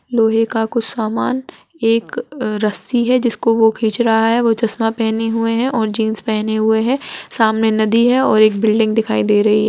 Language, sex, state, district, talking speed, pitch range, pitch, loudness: Hindi, female, Bihar, Gaya, 210 wpm, 220-235 Hz, 225 Hz, -16 LUFS